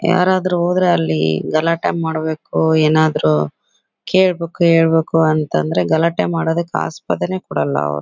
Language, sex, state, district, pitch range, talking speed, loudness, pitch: Kannada, female, Karnataka, Bellary, 155-175 Hz, 110 wpm, -16 LUFS, 165 Hz